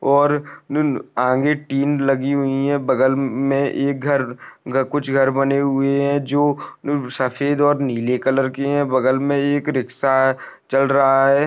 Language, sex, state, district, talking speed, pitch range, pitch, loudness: Hindi, male, Maharashtra, Nagpur, 150 wpm, 135-145 Hz, 140 Hz, -19 LUFS